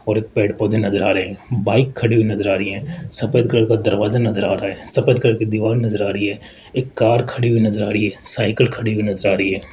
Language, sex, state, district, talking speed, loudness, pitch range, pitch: Hindi, male, Rajasthan, Jaipur, 285 wpm, -18 LUFS, 100-115 Hz, 110 Hz